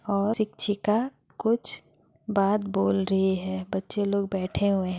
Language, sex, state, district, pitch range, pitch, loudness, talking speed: Hindi, female, Bihar, Madhepura, 190-210 Hz, 200 Hz, -26 LUFS, 145 wpm